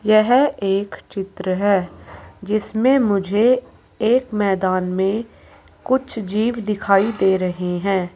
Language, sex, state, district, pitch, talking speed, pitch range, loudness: Hindi, female, Uttar Pradesh, Saharanpur, 205 Hz, 110 wpm, 190-225 Hz, -19 LUFS